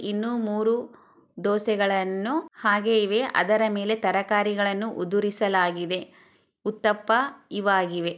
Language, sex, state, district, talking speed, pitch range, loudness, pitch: Kannada, female, Karnataka, Chamarajanagar, 80 wpm, 195-220 Hz, -24 LUFS, 205 Hz